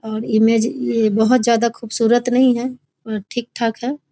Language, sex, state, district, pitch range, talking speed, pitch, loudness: Maithili, female, Bihar, Muzaffarpur, 220-245 Hz, 160 wpm, 230 Hz, -18 LUFS